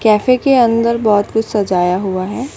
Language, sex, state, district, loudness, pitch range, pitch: Hindi, female, West Bengal, Alipurduar, -14 LUFS, 195-235 Hz, 220 Hz